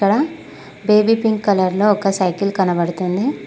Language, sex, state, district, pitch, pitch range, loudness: Telugu, female, Telangana, Mahabubabad, 200 Hz, 185-220 Hz, -17 LUFS